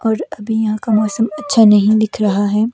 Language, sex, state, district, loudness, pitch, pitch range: Hindi, female, Himachal Pradesh, Shimla, -14 LUFS, 215 Hz, 210-225 Hz